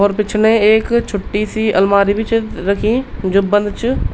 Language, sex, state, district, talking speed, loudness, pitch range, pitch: Garhwali, male, Uttarakhand, Tehri Garhwal, 175 wpm, -15 LUFS, 200-220 Hz, 215 Hz